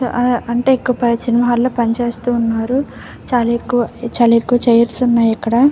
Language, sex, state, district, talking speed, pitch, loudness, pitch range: Telugu, female, Andhra Pradesh, Visakhapatnam, 155 wpm, 240 Hz, -15 LUFS, 235-245 Hz